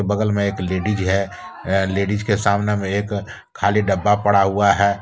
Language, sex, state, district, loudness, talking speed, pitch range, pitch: Hindi, male, Jharkhand, Deoghar, -19 LUFS, 190 wpm, 95-105 Hz, 100 Hz